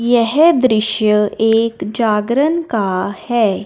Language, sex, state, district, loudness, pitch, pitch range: Hindi, male, Punjab, Fazilka, -15 LUFS, 225 Hz, 210-240 Hz